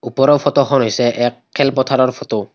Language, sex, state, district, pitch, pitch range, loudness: Assamese, male, Assam, Kamrup Metropolitan, 130 Hz, 120-140 Hz, -15 LUFS